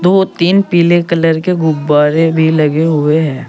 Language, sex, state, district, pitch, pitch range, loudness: Hindi, male, Uttar Pradesh, Saharanpur, 160 Hz, 155-175 Hz, -11 LUFS